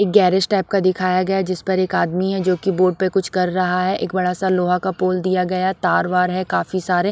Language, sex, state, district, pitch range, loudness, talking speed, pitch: Hindi, female, Odisha, Sambalpur, 180-190 Hz, -19 LUFS, 280 wpm, 185 Hz